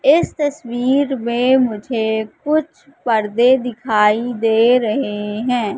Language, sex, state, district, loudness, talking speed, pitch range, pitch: Hindi, female, Madhya Pradesh, Katni, -17 LUFS, 105 wpm, 220-275 Hz, 245 Hz